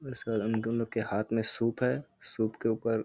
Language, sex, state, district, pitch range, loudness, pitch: Hindi, male, Bihar, Kishanganj, 110-115 Hz, -31 LUFS, 115 Hz